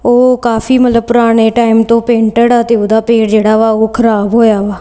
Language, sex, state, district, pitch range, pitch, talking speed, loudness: Punjabi, female, Punjab, Kapurthala, 220-235 Hz, 230 Hz, 200 wpm, -9 LUFS